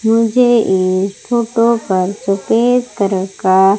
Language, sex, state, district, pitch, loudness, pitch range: Hindi, female, Madhya Pradesh, Umaria, 205 Hz, -14 LUFS, 190-235 Hz